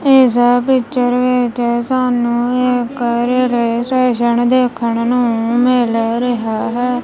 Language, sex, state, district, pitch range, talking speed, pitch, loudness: Punjabi, female, Punjab, Kapurthala, 235-250 Hz, 100 wpm, 245 Hz, -14 LUFS